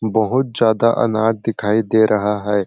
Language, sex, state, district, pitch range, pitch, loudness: Hindi, male, Chhattisgarh, Sarguja, 105-115 Hz, 110 Hz, -17 LUFS